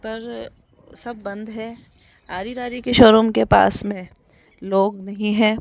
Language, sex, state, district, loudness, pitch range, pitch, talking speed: Hindi, female, Rajasthan, Jaipur, -17 LUFS, 195-230 Hz, 215 Hz, 150 wpm